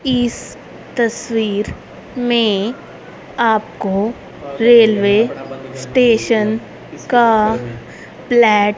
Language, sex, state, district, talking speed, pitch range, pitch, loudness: Hindi, female, Haryana, Rohtak, 70 wpm, 205-235 Hz, 220 Hz, -15 LUFS